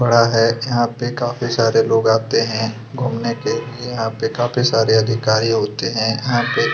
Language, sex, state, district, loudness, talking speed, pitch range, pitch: Hindi, male, Chhattisgarh, Kabirdham, -18 LUFS, 185 wpm, 115-120 Hz, 115 Hz